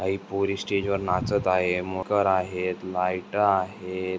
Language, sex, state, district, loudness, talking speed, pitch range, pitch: Marathi, male, Maharashtra, Dhule, -26 LUFS, 145 wpm, 90-100 Hz, 95 Hz